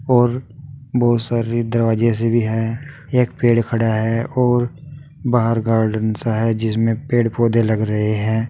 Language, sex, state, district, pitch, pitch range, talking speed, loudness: Hindi, male, Uttar Pradesh, Saharanpur, 115 Hz, 115-125 Hz, 155 wpm, -18 LUFS